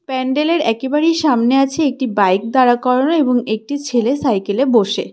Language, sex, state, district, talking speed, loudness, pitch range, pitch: Bengali, female, West Bengal, Cooch Behar, 175 wpm, -15 LUFS, 235-290 Hz, 260 Hz